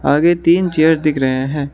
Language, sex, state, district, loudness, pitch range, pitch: Hindi, male, Arunachal Pradesh, Lower Dibang Valley, -14 LUFS, 140-170 Hz, 155 Hz